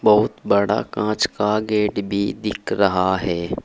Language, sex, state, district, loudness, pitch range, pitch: Hindi, male, Uttar Pradesh, Saharanpur, -20 LUFS, 95-105 Hz, 100 Hz